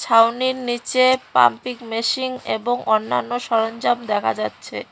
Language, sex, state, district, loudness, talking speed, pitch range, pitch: Bengali, female, West Bengal, Cooch Behar, -20 LUFS, 110 wpm, 220-250 Hz, 230 Hz